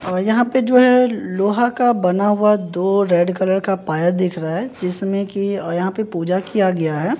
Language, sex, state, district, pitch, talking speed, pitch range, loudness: Hindi, male, Bihar, Katihar, 195 Hz, 215 wpm, 180-215 Hz, -17 LUFS